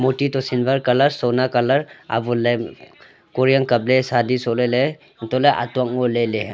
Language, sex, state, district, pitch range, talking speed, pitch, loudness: Wancho, male, Arunachal Pradesh, Longding, 120-130 Hz, 145 wpm, 125 Hz, -19 LUFS